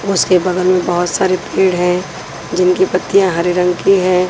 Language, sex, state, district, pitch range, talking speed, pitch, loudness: Hindi, female, Punjab, Pathankot, 180-185 Hz, 180 wpm, 180 Hz, -14 LUFS